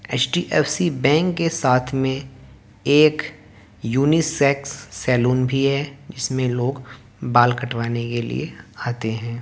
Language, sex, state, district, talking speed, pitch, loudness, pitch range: Hindi, male, Haryana, Jhajjar, 115 wpm, 130 Hz, -20 LUFS, 120-145 Hz